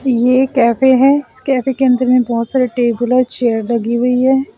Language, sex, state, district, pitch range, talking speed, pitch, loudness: Hindi, male, Assam, Sonitpur, 240-265 Hz, 225 wpm, 250 Hz, -14 LUFS